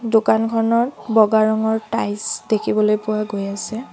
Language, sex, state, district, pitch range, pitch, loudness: Assamese, female, Assam, Sonitpur, 215-225 Hz, 220 Hz, -19 LUFS